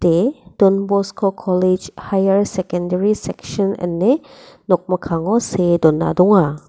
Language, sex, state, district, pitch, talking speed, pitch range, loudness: Garo, female, Meghalaya, West Garo Hills, 185 Hz, 100 wpm, 175-200 Hz, -17 LUFS